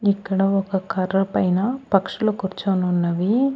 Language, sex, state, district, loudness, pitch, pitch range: Telugu, female, Andhra Pradesh, Annamaya, -21 LUFS, 195 Hz, 185-205 Hz